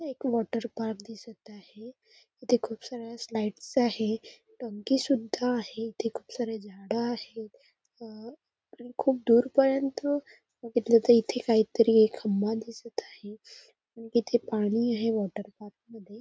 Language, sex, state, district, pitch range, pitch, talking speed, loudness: Marathi, female, Maharashtra, Nagpur, 220-245 Hz, 230 Hz, 135 wpm, -28 LUFS